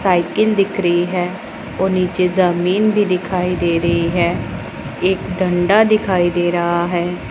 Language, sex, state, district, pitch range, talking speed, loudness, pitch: Hindi, female, Punjab, Pathankot, 175-190 Hz, 150 wpm, -17 LUFS, 180 Hz